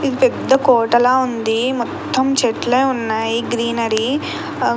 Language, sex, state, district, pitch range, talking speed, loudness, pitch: Telugu, female, Andhra Pradesh, Krishna, 230-260 Hz, 115 wpm, -17 LUFS, 245 Hz